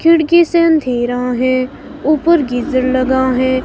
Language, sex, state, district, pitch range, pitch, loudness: Hindi, female, Himachal Pradesh, Shimla, 255-315 Hz, 260 Hz, -14 LUFS